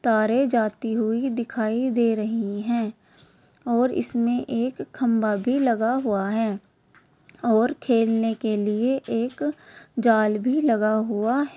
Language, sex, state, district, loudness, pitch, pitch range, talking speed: Hindi, female, Bihar, Begusarai, -23 LUFS, 230 Hz, 220-250 Hz, 130 wpm